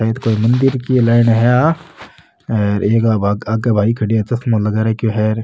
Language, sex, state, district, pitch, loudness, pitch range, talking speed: Marwari, male, Rajasthan, Nagaur, 110 Hz, -15 LUFS, 110-120 Hz, 175 wpm